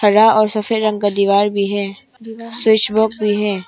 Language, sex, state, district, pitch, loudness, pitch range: Hindi, female, Arunachal Pradesh, Papum Pare, 215 Hz, -15 LUFS, 205-220 Hz